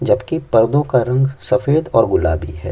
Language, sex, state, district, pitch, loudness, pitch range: Hindi, male, Chhattisgarh, Kabirdham, 125 Hz, -16 LUFS, 90-135 Hz